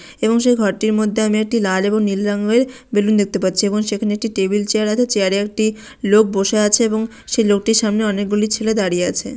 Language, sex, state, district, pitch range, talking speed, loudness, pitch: Bengali, female, West Bengal, Malda, 205-220 Hz, 210 wpm, -17 LUFS, 215 Hz